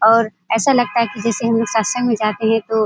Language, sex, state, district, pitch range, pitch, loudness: Hindi, female, Bihar, Kishanganj, 220-230 Hz, 225 Hz, -17 LUFS